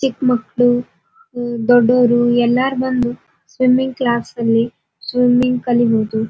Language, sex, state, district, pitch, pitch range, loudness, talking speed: Kannada, female, Karnataka, Dharwad, 245 Hz, 240-255 Hz, -16 LUFS, 85 wpm